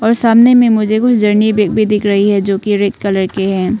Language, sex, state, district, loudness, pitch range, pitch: Hindi, female, Arunachal Pradesh, Papum Pare, -12 LUFS, 200-225 Hz, 210 Hz